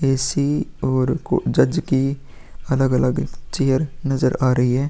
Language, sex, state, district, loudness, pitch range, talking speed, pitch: Hindi, male, Bihar, Vaishali, -20 LUFS, 130-140 Hz, 120 wpm, 135 Hz